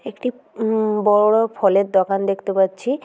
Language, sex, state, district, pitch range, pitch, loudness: Bengali, female, West Bengal, Jhargram, 195-225 Hz, 210 Hz, -18 LUFS